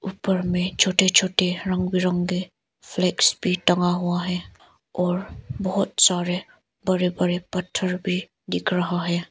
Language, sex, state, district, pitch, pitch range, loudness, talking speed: Hindi, female, Arunachal Pradesh, Lower Dibang Valley, 180 Hz, 180-185 Hz, -22 LUFS, 135 wpm